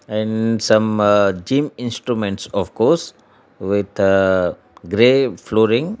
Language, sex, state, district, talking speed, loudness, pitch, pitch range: English, male, Gujarat, Valsad, 100 wpm, -17 LUFS, 110 Hz, 100-120 Hz